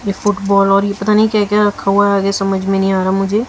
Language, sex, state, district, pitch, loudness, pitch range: Hindi, female, Haryana, Jhajjar, 200 Hz, -14 LUFS, 195-210 Hz